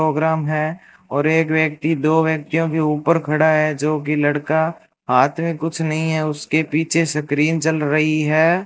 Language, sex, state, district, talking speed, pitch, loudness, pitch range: Hindi, male, Rajasthan, Bikaner, 165 wpm, 155 Hz, -18 LUFS, 150-160 Hz